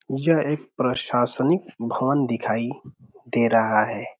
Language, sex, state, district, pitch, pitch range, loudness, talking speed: Hindi, male, Uttar Pradesh, Ghazipur, 125 Hz, 115-140 Hz, -23 LUFS, 115 wpm